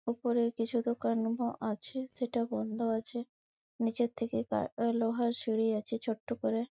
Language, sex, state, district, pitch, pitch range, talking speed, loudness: Bengali, female, West Bengal, Malda, 230 Hz, 225-240 Hz, 150 wpm, -34 LUFS